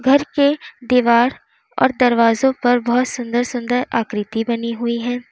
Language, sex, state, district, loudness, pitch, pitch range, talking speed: Hindi, female, Uttar Pradesh, Lalitpur, -18 LUFS, 245 Hz, 235-255 Hz, 145 wpm